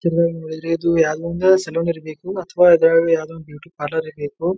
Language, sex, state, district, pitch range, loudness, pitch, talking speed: Kannada, male, Karnataka, Dharwad, 160-170 Hz, -18 LUFS, 165 Hz, 195 wpm